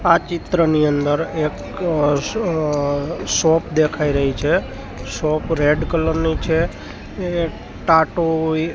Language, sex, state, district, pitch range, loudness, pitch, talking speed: Gujarati, male, Gujarat, Gandhinagar, 150-165 Hz, -19 LUFS, 160 Hz, 115 wpm